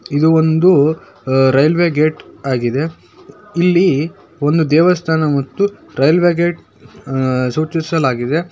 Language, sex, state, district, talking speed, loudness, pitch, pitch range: Kannada, male, Karnataka, Shimoga, 100 wpm, -15 LUFS, 160 Hz, 135-170 Hz